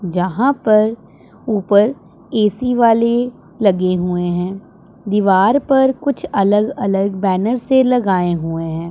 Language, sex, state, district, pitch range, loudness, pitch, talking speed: Hindi, male, Punjab, Pathankot, 185-245 Hz, -16 LUFS, 210 Hz, 120 wpm